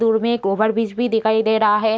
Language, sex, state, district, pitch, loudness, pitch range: Hindi, female, Bihar, Madhepura, 220 Hz, -18 LUFS, 220-225 Hz